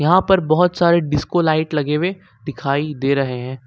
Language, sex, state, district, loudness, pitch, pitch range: Hindi, male, Jharkhand, Ranchi, -18 LUFS, 150 Hz, 140-175 Hz